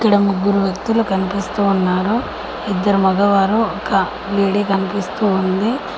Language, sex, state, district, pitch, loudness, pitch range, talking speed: Telugu, female, Telangana, Mahabubabad, 200 Hz, -17 LUFS, 195-205 Hz, 110 wpm